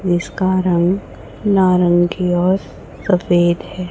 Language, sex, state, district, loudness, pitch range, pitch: Hindi, female, Chhattisgarh, Raipur, -16 LUFS, 175-185 Hz, 180 Hz